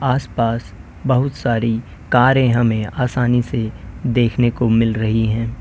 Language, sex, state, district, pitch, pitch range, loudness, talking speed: Hindi, male, Uttar Pradesh, Lalitpur, 115 Hz, 110-125 Hz, -18 LUFS, 130 wpm